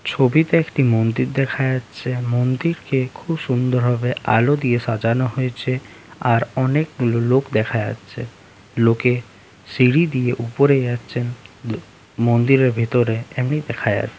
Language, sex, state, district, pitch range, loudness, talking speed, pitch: Bengali, male, West Bengal, Jalpaiguri, 115-130 Hz, -19 LUFS, 125 wpm, 125 Hz